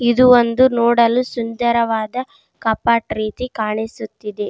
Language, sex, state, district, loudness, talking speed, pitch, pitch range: Kannada, female, Karnataka, Raichur, -17 LUFS, 95 wpm, 235 Hz, 220-245 Hz